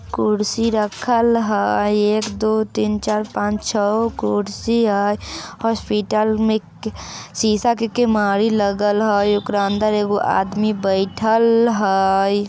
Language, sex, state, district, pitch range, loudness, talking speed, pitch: Bajjika, female, Bihar, Vaishali, 205-220 Hz, -18 LUFS, 140 wpm, 210 Hz